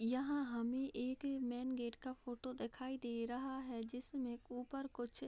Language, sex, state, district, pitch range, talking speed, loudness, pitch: Hindi, female, Bihar, Madhepura, 240-265 Hz, 170 wpm, -44 LUFS, 250 Hz